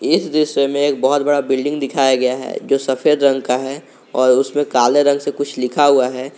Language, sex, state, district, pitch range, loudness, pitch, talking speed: Hindi, male, Jharkhand, Garhwa, 130-145 Hz, -16 LUFS, 135 Hz, 225 wpm